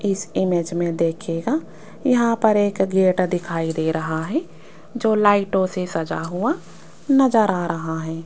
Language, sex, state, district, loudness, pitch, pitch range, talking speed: Hindi, female, Rajasthan, Jaipur, -21 LUFS, 185 Hz, 165-220 Hz, 150 wpm